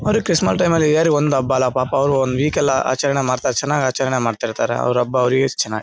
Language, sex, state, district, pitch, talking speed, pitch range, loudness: Kannada, male, Karnataka, Bellary, 135 Hz, 225 wpm, 130-150 Hz, -18 LUFS